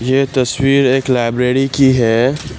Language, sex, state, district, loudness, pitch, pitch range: Hindi, male, Assam, Kamrup Metropolitan, -13 LUFS, 130 Hz, 125-135 Hz